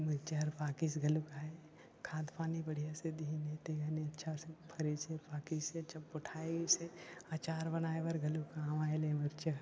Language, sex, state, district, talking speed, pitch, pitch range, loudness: Chhattisgarhi, male, Chhattisgarh, Sarguja, 180 wpm, 155 Hz, 150-160 Hz, -40 LUFS